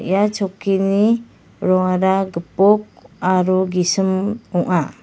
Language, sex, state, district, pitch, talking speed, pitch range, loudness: Garo, female, Meghalaya, West Garo Hills, 190 Hz, 85 wpm, 185-200 Hz, -18 LUFS